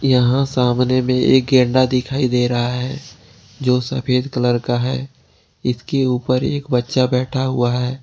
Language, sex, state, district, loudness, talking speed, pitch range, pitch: Hindi, male, Jharkhand, Ranchi, -18 LUFS, 155 wpm, 125-130 Hz, 125 Hz